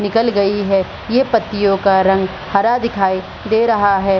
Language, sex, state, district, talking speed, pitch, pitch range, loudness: Hindi, female, Bihar, Supaul, 170 wpm, 200 Hz, 195-225 Hz, -15 LUFS